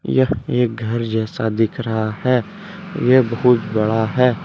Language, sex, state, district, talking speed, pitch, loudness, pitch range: Hindi, male, Jharkhand, Deoghar, 150 wpm, 115 Hz, -18 LUFS, 110-125 Hz